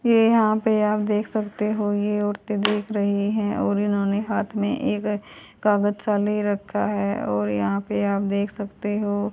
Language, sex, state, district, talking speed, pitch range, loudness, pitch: Hindi, female, Haryana, Rohtak, 185 wpm, 200-210 Hz, -23 LUFS, 205 Hz